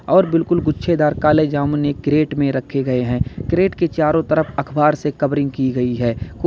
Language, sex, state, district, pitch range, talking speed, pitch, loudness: Hindi, male, Uttar Pradesh, Lalitpur, 135-155 Hz, 215 wpm, 145 Hz, -18 LUFS